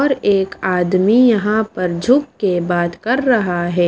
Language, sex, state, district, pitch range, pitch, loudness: Hindi, female, Maharashtra, Washim, 175-240 Hz, 200 Hz, -16 LUFS